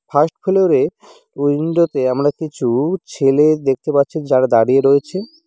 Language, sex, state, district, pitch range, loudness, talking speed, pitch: Bengali, male, West Bengal, Cooch Behar, 135-165 Hz, -16 LUFS, 145 wpm, 145 Hz